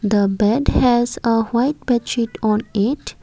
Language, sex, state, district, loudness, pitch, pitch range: English, female, Assam, Kamrup Metropolitan, -18 LUFS, 230 Hz, 215-240 Hz